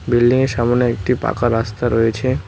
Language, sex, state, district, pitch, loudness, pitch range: Bengali, male, West Bengal, Cooch Behar, 120 Hz, -17 LUFS, 115-125 Hz